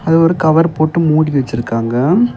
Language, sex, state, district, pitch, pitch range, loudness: Tamil, male, Tamil Nadu, Kanyakumari, 155 Hz, 130-165 Hz, -13 LUFS